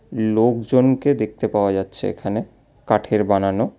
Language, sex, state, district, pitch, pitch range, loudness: Bengali, male, West Bengal, Alipurduar, 110 Hz, 100-120 Hz, -20 LUFS